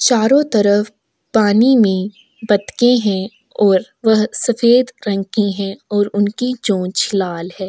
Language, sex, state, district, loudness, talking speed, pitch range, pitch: Hindi, female, Maharashtra, Aurangabad, -15 LUFS, 135 wpm, 200-240 Hz, 210 Hz